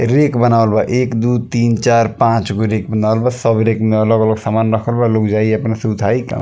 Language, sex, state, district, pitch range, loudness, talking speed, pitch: Bhojpuri, male, Bihar, East Champaran, 110-120 Hz, -14 LUFS, 245 wpm, 115 Hz